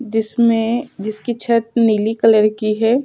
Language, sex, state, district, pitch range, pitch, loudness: Hindi, female, Chhattisgarh, Sukma, 215-235 Hz, 225 Hz, -16 LUFS